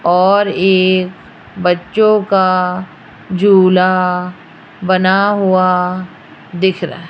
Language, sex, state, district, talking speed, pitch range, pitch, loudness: Hindi, female, Rajasthan, Jaipur, 85 wpm, 180-190 Hz, 185 Hz, -13 LUFS